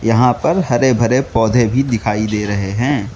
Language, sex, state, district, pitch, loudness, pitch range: Hindi, male, Mizoram, Aizawl, 120 Hz, -15 LUFS, 110-130 Hz